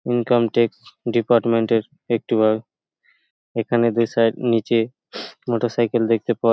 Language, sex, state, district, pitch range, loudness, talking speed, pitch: Bengali, male, West Bengal, Paschim Medinipur, 115-120 Hz, -20 LUFS, 100 wpm, 115 Hz